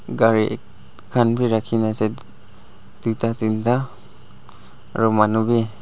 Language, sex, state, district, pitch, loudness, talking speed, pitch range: Nagamese, male, Nagaland, Dimapur, 110 Hz, -20 LUFS, 125 wpm, 105-115 Hz